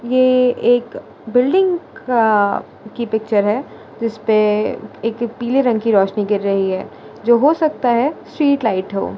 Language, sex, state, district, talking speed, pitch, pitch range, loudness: Hindi, female, Gujarat, Gandhinagar, 150 wpm, 235 Hz, 210-255 Hz, -17 LUFS